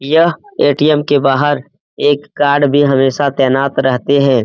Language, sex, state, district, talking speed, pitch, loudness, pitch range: Hindi, male, Bihar, Jamui, 150 wpm, 140 Hz, -13 LUFS, 135-145 Hz